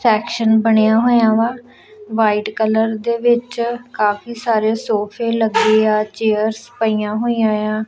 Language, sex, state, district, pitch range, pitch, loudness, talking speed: Punjabi, female, Punjab, Kapurthala, 215-235 Hz, 220 Hz, -17 LUFS, 130 wpm